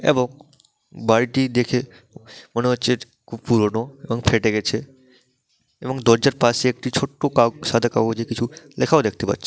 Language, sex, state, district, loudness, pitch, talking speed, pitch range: Bengali, male, West Bengal, Malda, -20 LUFS, 120 Hz, 140 wpm, 115-130 Hz